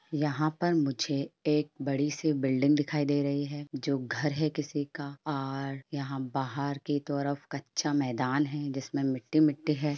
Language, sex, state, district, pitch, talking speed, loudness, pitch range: Hindi, female, Chhattisgarh, Raigarh, 145 Hz, 160 wpm, -31 LUFS, 140-150 Hz